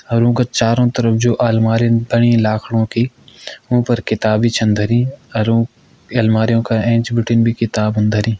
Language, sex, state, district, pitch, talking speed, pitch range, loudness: Hindi, male, Uttarakhand, Uttarkashi, 115 Hz, 170 wpm, 110-120 Hz, -15 LUFS